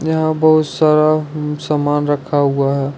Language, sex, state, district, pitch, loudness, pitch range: Hindi, male, Jharkhand, Ranchi, 150 Hz, -15 LUFS, 145-155 Hz